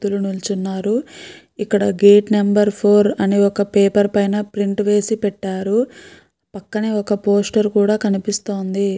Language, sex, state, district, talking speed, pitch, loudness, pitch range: Telugu, female, Andhra Pradesh, Guntur, 125 wpm, 205 Hz, -17 LUFS, 200-210 Hz